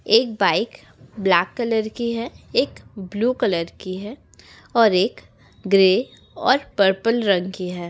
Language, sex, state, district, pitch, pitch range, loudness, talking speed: Hindi, female, Uttar Pradesh, Etah, 205 Hz, 185-230 Hz, -20 LUFS, 150 wpm